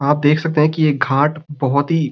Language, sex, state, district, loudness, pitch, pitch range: Hindi, male, Uttarakhand, Uttarkashi, -16 LUFS, 150 Hz, 145-155 Hz